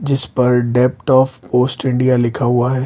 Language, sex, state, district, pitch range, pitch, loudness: Hindi, male, Bihar, Lakhisarai, 125-130 Hz, 125 Hz, -15 LUFS